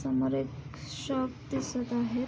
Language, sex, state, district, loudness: Marathi, female, Maharashtra, Sindhudurg, -33 LUFS